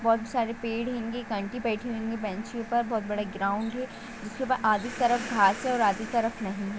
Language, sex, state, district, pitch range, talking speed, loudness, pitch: Hindi, female, Bihar, Saran, 210-240 Hz, 220 wpm, -28 LUFS, 225 Hz